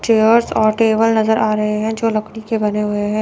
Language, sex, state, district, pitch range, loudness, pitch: Hindi, female, Chandigarh, Chandigarh, 215-225 Hz, -16 LUFS, 220 Hz